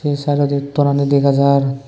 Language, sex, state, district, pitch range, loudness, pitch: Chakma, male, Tripura, West Tripura, 140-145 Hz, -15 LUFS, 140 Hz